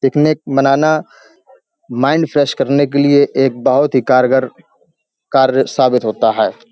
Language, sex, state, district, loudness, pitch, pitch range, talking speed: Hindi, male, Uttar Pradesh, Hamirpur, -13 LUFS, 140 Hz, 130-150 Hz, 145 wpm